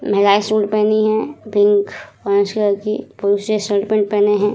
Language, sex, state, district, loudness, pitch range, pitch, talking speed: Hindi, female, Bihar, Vaishali, -17 LUFS, 205-215 Hz, 210 Hz, 170 wpm